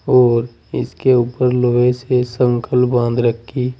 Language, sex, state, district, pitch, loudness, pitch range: Hindi, male, Uttar Pradesh, Saharanpur, 125 Hz, -16 LUFS, 120-125 Hz